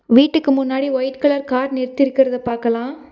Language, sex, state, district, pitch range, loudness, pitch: Tamil, female, Tamil Nadu, Nilgiris, 255-275 Hz, -18 LUFS, 265 Hz